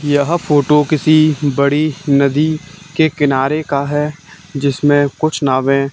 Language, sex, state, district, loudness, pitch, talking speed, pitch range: Hindi, male, Haryana, Charkhi Dadri, -14 LUFS, 150 Hz, 120 wpm, 140-155 Hz